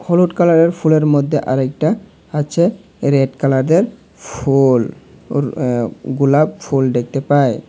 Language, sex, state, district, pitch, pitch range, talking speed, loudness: Bengali, male, Tripura, Unakoti, 145 Hz, 135-170 Hz, 115 wpm, -16 LUFS